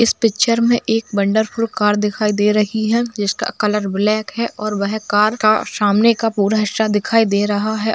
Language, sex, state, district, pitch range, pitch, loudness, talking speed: Hindi, female, Bihar, Jamui, 210-225 Hz, 215 Hz, -17 LUFS, 195 wpm